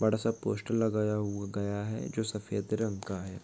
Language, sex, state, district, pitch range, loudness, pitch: Hindi, male, Uttarakhand, Tehri Garhwal, 100-110 Hz, -33 LUFS, 105 Hz